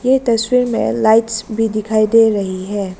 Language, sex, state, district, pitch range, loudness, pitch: Hindi, female, Arunachal Pradesh, Lower Dibang Valley, 210-230 Hz, -15 LUFS, 220 Hz